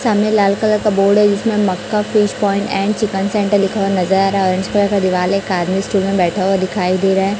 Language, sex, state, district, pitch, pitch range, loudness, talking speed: Hindi, male, Chhattisgarh, Raipur, 195 Hz, 190-210 Hz, -15 LUFS, 275 wpm